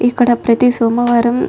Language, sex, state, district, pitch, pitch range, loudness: Telugu, female, Telangana, Nalgonda, 240 Hz, 235-245 Hz, -13 LUFS